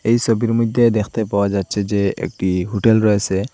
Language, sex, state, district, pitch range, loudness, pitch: Bengali, male, Assam, Hailakandi, 100-115 Hz, -18 LUFS, 105 Hz